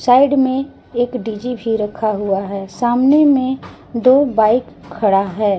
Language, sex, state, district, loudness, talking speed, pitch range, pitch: Hindi, female, Jharkhand, Garhwa, -16 LUFS, 150 wpm, 210-260 Hz, 240 Hz